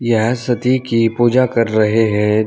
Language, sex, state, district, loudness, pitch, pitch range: Hindi, male, Uttar Pradesh, Saharanpur, -15 LUFS, 115 Hz, 110-120 Hz